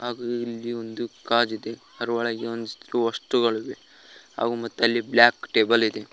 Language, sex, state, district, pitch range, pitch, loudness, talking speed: Kannada, male, Karnataka, Koppal, 115-120 Hz, 115 Hz, -24 LUFS, 120 wpm